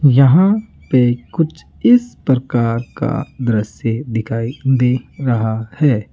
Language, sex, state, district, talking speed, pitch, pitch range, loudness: Hindi, male, Rajasthan, Jaipur, 105 wpm, 125 Hz, 115-145 Hz, -16 LUFS